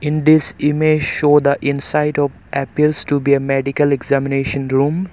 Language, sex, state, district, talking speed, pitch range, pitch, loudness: English, male, Arunachal Pradesh, Longding, 165 wpm, 140-150 Hz, 145 Hz, -16 LUFS